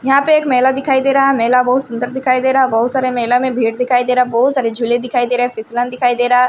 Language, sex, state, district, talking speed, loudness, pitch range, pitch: Hindi, female, Punjab, Kapurthala, 285 wpm, -14 LUFS, 245-265 Hz, 250 Hz